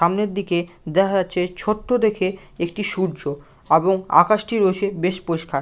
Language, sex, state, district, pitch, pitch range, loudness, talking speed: Bengali, male, West Bengal, Malda, 185 Hz, 170-200 Hz, -20 LUFS, 150 wpm